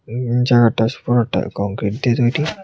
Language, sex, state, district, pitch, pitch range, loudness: Bengali, male, Tripura, West Tripura, 120 Hz, 110-125 Hz, -18 LUFS